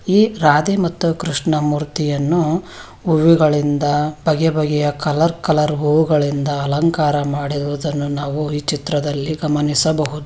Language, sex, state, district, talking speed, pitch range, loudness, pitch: Kannada, female, Karnataka, Bangalore, 100 wpm, 145-160 Hz, -17 LUFS, 150 Hz